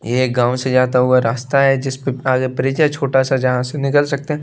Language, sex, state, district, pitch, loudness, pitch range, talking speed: Hindi, male, Bihar, West Champaran, 130 Hz, -16 LUFS, 130-140 Hz, 245 wpm